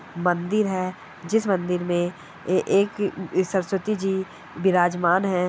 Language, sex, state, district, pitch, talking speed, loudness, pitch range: Hindi, male, Bihar, Kishanganj, 185 Hz, 120 wpm, -23 LUFS, 175-195 Hz